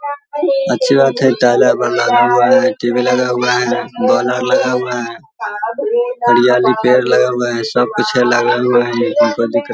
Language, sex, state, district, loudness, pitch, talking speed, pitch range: Hindi, male, Bihar, Vaishali, -13 LUFS, 125 Hz, 170 wpm, 120-185 Hz